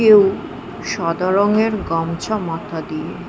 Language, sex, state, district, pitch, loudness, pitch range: Bengali, female, West Bengal, Jhargram, 185 Hz, -19 LUFS, 165-210 Hz